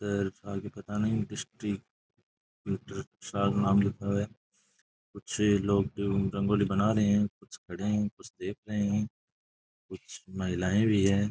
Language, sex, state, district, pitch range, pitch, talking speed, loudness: Rajasthani, male, Rajasthan, Churu, 100-105 Hz, 100 Hz, 125 wpm, -30 LUFS